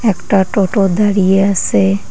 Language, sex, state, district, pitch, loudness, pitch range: Bengali, female, West Bengal, Cooch Behar, 195 Hz, -13 LUFS, 180-200 Hz